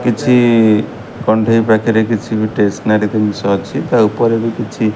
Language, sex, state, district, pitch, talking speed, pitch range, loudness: Odia, male, Odisha, Khordha, 110 Hz, 145 wpm, 105-115 Hz, -14 LUFS